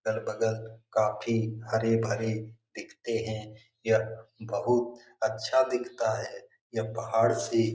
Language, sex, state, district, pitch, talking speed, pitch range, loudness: Hindi, male, Bihar, Jamui, 110 Hz, 110 wpm, 110-115 Hz, -30 LUFS